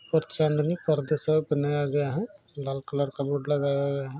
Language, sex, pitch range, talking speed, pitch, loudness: Maithili, female, 140-155 Hz, 185 wpm, 145 Hz, -27 LUFS